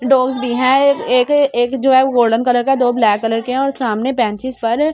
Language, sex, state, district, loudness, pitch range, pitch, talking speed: Hindi, female, Delhi, New Delhi, -15 LUFS, 240-265 Hz, 255 Hz, 265 wpm